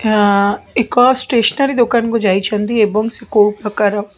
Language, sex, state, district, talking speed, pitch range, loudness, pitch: Odia, female, Odisha, Khordha, 160 wpm, 205-235 Hz, -14 LUFS, 215 Hz